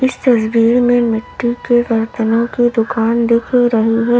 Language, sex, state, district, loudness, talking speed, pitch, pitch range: Hindi, female, Uttar Pradesh, Lalitpur, -14 LUFS, 155 wpm, 235 Hz, 225-245 Hz